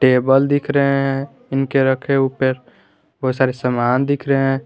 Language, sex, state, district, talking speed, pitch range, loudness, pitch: Hindi, male, Jharkhand, Garhwa, 165 wpm, 130-140 Hz, -18 LUFS, 135 Hz